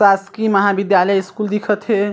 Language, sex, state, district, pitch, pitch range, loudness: Chhattisgarhi, female, Chhattisgarh, Sarguja, 200 Hz, 195-210 Hz, -16 LUFS